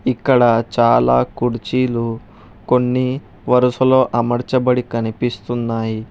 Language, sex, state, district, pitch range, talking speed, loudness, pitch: Telugu, male, Telangana, Hyderabad, 110-125 Hz, 70 wpm, -17 LUFS, 120 Hz